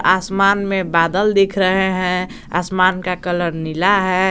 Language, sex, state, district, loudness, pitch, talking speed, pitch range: Hindi, male, Jharkhand, Garhwa, -17 LUFS, 185 Hz, 155 wpm, 180-195 Hz